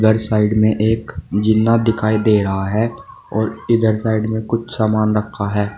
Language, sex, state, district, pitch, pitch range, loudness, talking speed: Hindi, male, Uttar Pradesh, Saharanpur, 110 Hz, 105-110 Hz, -17 LUFS, 175 wpm